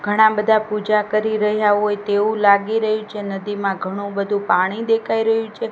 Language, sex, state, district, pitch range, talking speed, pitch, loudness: Gujarati, female, Gujarat, Gandhinagar, 205-220 Hz, 180 wpm, 210 Hz, -19 LUFS